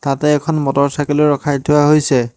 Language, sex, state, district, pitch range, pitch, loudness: Assamese, male, Assam, Hailakandi, 140-150 Hz, 145 Hz, -14 LUFS